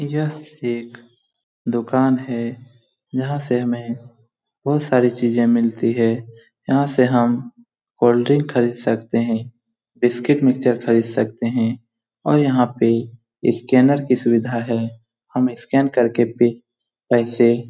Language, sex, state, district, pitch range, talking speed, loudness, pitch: Hindi, male, Bihar, Lakhisarai, 115-130 Hz, 125 wpm, -19 LUFS, 120 Hz